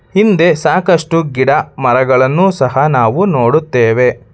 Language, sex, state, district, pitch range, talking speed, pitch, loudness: Kannada, male, Karnataka, Bangalore, 130-175 Hz, 95 wpm, 155 Hz, -11 LUFS